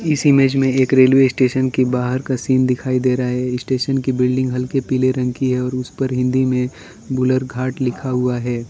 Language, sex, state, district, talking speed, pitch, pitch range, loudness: Hindi, male, Arunachal Pradesh, Lower Dibang Valley, 215 wpm, 130 Hz, 125-130 Hz, -18 LUFS